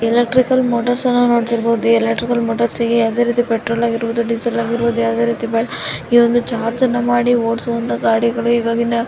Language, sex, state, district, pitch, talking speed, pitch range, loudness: Kannada, female, Karnataka, Gulbarga, 235 Hz, 145 wpm, 230-240 Hz, -16 LUFS